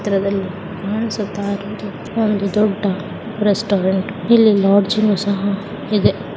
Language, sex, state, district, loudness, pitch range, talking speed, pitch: Kannada, female, Karnataka, Mysore, -18 LUFS, 195-210 Hz, 105 wpm, 200 Hz